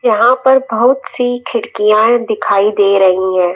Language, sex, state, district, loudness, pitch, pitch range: Hindi, female, Rajasthan, Jaipur, -12 LUFS, 225 Hz, 200-250 Hz